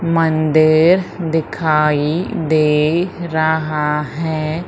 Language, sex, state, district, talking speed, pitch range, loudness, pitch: Hindi, female, Madhya Pradesh, Umaria, 65 wpm, 155-165 Hz, -16 LUFS, 160 Hz